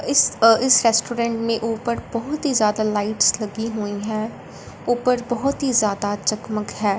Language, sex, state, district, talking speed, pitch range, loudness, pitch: Hindi, female, Punjab, Fazilka, 165 wpm, 215-240 Hz, -20 LUFS, 225 Hz